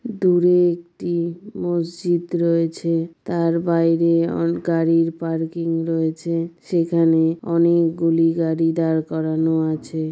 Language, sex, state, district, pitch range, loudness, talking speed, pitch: Bengali, female, West Bengal, Dakshin Dinajpur, 165-170 Hz, -20 LUFS, 95 wpm, 165 Hz